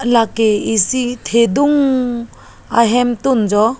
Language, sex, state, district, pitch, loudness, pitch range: Karbi, female, Assam, Karbi Anglong, 235 Hz, -14 LUFS, 225-255 Hz